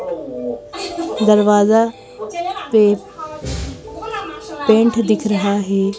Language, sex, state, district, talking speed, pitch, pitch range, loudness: Hindi, female, Madhya Pradesh, Bhopal, 60 wpm, 220 Hz, 205-340 Hz, -17 LUFS